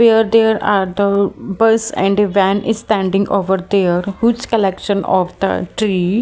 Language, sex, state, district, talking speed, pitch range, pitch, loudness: English, female, Haryana, Jhajjar, 165 wpm, 195-220 Hz, 200 Hz, -15 LUFS